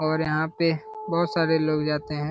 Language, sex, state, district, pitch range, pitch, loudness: Hindi, male, Jharkhand, Jamtara, 155-170 Hz, 160 Hz, -25 LUFS